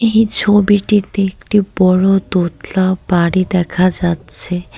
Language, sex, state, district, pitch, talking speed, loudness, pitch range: Bengali, female, West Bengal, Cooch Behar, 185 Hz, 100 wpm, -14 LUFS, 180-205 Hz